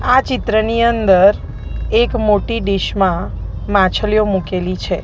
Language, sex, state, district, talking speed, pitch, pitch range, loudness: Gujarati, female, Gujarat, Gandhinagar, 120 wpm, 205 Hz, 185-230 Hz, -15 LUFS